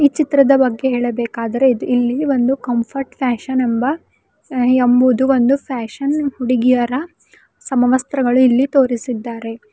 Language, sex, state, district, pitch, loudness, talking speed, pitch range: Kannada, female, Karnataka, Bidar, 255 Hz, -16 LUFS, 105 wpm, 245-270 Hz